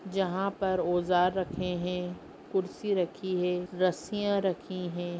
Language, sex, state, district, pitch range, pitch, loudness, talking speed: Hindi, female, Jharkhand, Jamtara, 180-190 Hz, 180 Hz, -30 LUFS, 125 wpm